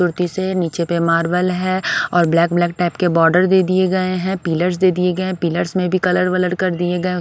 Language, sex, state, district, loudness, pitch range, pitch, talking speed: Hindi, female, Odisha, Sambalpur, -17 LUFS, 175-185 Hz, 180 Hz, 250 wpm